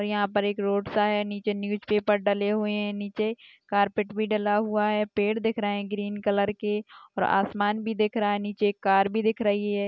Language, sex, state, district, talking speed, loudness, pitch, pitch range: Hindi, female, Maharashtra, Aurangabad, 230 wpm, -26 LUFS, 205 Hz, 205-210 Hz